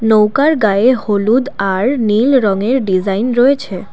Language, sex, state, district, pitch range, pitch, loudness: Bengali, female, Assam, Kamrup Metropolitan, 200-260 Hz, 225 Hz, -13 LUFS